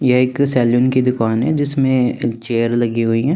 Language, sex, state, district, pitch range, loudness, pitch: Hindi, male, Chandigarh, Chandigarh, 115-130 Hz, -16 LUFS, 125 Hz